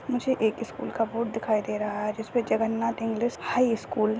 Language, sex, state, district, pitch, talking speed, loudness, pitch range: Hindi, female, Goa, North and South Goa, 225 Hz, 215 wpm, -27 LUFS, 215-235 Hz